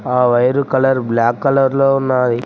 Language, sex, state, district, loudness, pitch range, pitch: Telugu, male, Telangana, Mahabubabad, -14 LUFS, 120-135 Hz, 130 Hz